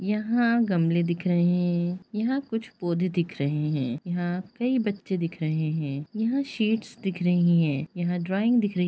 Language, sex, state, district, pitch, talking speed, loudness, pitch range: Hindi, female, Bihar, Jamui, 180 Hz, 180 wpm, -26 LUFS, 170-220 Hz